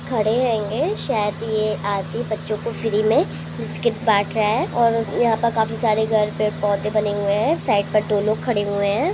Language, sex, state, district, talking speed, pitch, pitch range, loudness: Hindi, female, Chhattisgarh, Rajnandgaon, 205 wpm, 215 Hz, 205-220 Hz, -21 LUFS